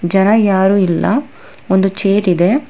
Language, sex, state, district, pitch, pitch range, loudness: Kannada, female, Karnataka, Bangalore, 195 Hz, 190-210 Hz, -13 LUFS